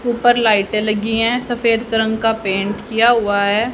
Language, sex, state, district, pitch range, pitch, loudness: Hindi, female, Haryana, Jhajjar, 210-240 Hz, 225 Hz, -16 LUFS